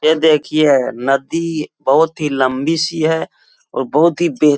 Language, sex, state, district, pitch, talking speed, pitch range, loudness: Hindi, male, Uttar Pradesh, Etah, 155 Hz, 170 wpm, 145-165 Hz, -15 LUFS